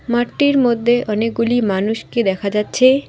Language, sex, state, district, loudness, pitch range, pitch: Bengali, female, West Bengal, Alipurduar, -17 LUFS, 210-245 Hz, 235 Hz